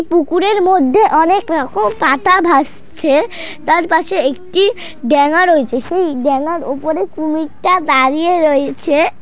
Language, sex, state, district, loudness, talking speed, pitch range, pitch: Bengali, female, West Bengal, Paschim Medinipur, -13 LUFS, 115 wpm, 285-360 Hz, 320 Hz